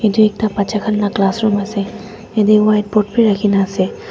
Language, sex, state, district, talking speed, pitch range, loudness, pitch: Nagamese, female, Nagaland, Dimapur, 175 wpm, 200-215 Hz, -15 LUFS, 210 Hz